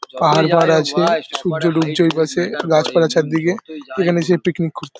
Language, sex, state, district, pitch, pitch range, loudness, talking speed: Bengali, male, West Bengal, Paschim Medinipur, 165 Hz, 160-175 Hz, -16 LUFS, 130 wpm